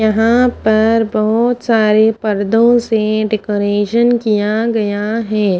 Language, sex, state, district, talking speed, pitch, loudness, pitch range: Hindi, female, Punjab, Fazilka, 105 wpm, 220 Hz, -14 LUFS, 210-230 Hz